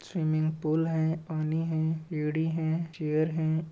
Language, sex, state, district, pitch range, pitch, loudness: Hindi, male, Maharashtra, Pune, 155-160 Hz, 160 Hz, -29 LUFS